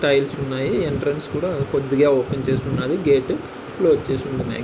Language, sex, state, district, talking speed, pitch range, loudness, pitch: Telugu, male, Andhra Pradesh, Anantapur, 170 wpm, 135-145 Hz, -21 LUFS, 140 Hz